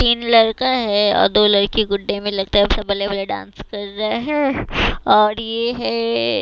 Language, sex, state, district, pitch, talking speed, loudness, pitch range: Hindi, female, Himachal Pradesh, Shimla, 205 Hz, 185 wpm, -17 LUFS, 200-230 Hz